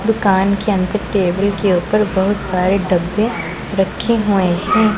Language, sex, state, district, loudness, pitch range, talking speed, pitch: Hindi, female, Punjab, Pathankot, -16 LUFS, 190-210 Hz, 145 wpm, 200 Hz